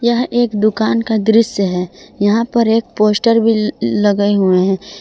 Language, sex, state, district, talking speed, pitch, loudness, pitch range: Hindi, female, Jharkhand, Palamu, 170 wpm, 215 Hz, -14 LUFS, 205-230 Hz